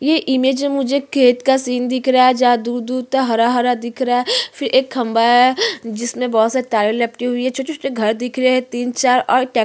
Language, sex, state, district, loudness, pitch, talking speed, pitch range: Hindi, female, Uttarakhand, Tehri Garhwal, -16 LUFS, 250 Hz, 225 wpm, 240-265 Hz